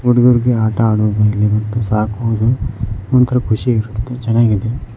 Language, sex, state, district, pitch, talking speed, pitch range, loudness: Kannada, male, Karnataka, Koppal, 115 Hz, 110 wpm, 105-120 Hz, -15 LUFS